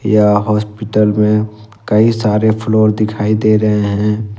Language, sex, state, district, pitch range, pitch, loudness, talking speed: Hindi, male, Jharkhand, Ranchi, 105-110 Hz, 105 Hz, -13 LUFS, 135 wpm